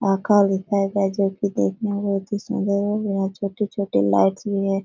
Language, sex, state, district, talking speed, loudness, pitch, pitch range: Hindi, female, Bihar, Jahanabad, 225 wpm, -22 LUFS, 200 Hz, 195-205 Hz